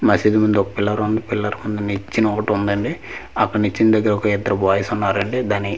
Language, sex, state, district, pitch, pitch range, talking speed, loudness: Telugu, male, Andhra Pradesh, Manyam, 105 Hz, 100-105 Hz, 195 wpm, -19 LUFS